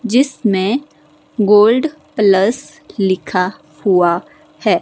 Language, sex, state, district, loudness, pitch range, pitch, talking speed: Hindi, female, Himachal Pradesh, Shimla, -15 LUFS, 190-255 Hz, 210 Hz, 75 wpm